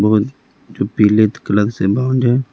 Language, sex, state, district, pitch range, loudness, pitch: Hindi, male, Delhi, New Delhi, 105-125 Hz, -15 LUFS, 110 Hz